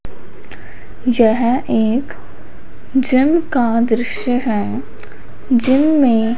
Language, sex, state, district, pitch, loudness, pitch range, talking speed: Hindi, female, Punjab, Fazilka, 245 Hz, -16 LUFS, 230-265 Hz, 75 wpm